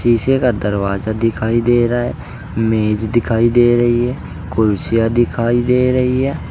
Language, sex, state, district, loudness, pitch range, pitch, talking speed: Hindi, male, Uttar Pradesh, Saharanpur, -16 LUFS, 110-120 Hz, 115 Hz, 155 wpm